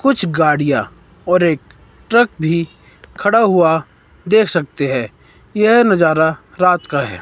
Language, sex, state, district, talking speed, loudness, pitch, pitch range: Hindi, male, Himachal Pradesh, Shimla, 135 wpm, -15 LUFS, 170 Hz, 150-205 Hz